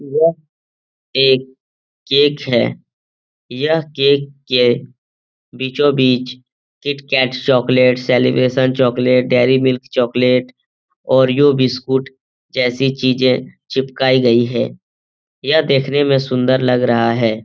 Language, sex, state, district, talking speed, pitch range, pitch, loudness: Hindi, male, Bihar, Jamui, 105 wpm, 125-135 Hz, 130 Hz, -15 LUFS